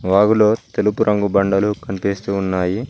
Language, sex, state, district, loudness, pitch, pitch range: Telugu, male, Telangana, Mahabubabad, -17 LUFS, 100 Hz, 95-105 Hz